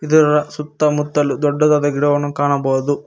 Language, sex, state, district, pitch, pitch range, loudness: Kannada, male, Karnataka, Koppal, 145 Hz, 145-150 Hz, -16 LUFS